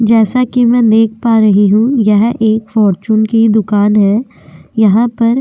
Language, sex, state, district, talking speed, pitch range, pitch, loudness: Hindi, female, Uttar Pradesh, Jyotiba Phule Nagar, 175 wpm, 210-230 Hz, 220 Hz, -10 LUFS